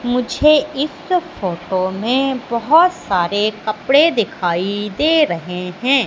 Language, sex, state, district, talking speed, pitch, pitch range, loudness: Hindi, female, Madhya Pradesh, Katni, 110 wpm, 245 Hz, 190-295 Hz, -17 LUFS